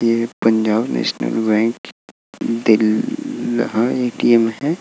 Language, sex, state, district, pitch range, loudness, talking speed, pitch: Hindi, male, Bihar, Gaya, 110-120 Hz, -18 LUFS, 85 wpm, 115 Hz